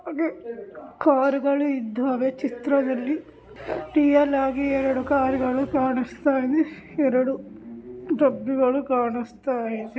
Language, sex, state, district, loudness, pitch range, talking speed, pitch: Kannada, female, Karnataka, Gulbarga, -23 LUFS, 255-280 Hz, 80 wpm, 265 Hz